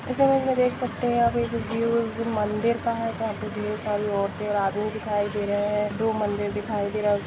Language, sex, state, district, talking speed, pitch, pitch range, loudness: Hindi, female, Jharkhand, Jamtara, 230 wpm, 215 Hz, 205-235 Hz, -25 LUFS